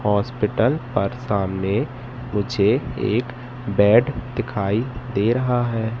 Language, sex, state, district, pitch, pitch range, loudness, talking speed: Hindi, male, Madhya Pradesh, Katni, 120 Hz, 105-125 Hz, -21 LUFS, 100 wpm